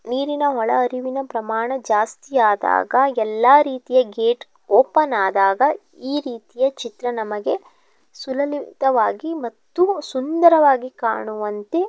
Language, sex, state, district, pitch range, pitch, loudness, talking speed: Kannada, female, Karnataka, Chamarajanagar, 225-285 Hz, 260 Hz, -19 LUFS, 95 wpm